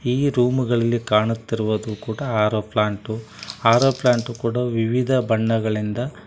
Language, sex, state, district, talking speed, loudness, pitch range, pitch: Kannada, male, Karnataka, Koppal, 125 wpm, -21 LUFS, 110-125 Hz, 115 Hz